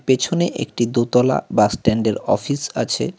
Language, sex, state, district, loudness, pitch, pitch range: Bengali, male, West Bengal, Cooch Behar, -19 LUFS, 125 Hz, 115-140 Hz